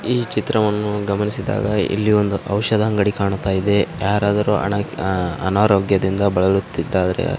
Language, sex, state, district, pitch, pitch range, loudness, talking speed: Kannada, male, Karnataka, Raichur, 100 Hz, 100-105 Hz, -19 LUFS, 95 wpm